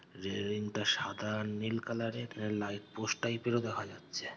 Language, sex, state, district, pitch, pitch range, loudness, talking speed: Bengali, male, West Bengal, North 24 Parganas, 105 Hz, 105-115 Hz, -36 LUFS, 220 wpm